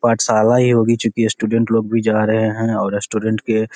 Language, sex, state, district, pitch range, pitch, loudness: Hindi, male, Bihar, Supaul, 110-115 Hz, 110 Hz, -16 LUFS